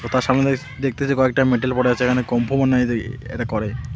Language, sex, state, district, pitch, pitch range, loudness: Bengali, male, West Bengal, Alipurduar, 125 Hz, 120-130 Hz, -20 LUFS